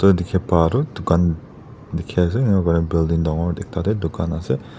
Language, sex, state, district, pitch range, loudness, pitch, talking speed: Nagamese, male, Nagaland, Dimapur, 85-100 Hz, -20 LUFS, 85 Hz, 165 wpm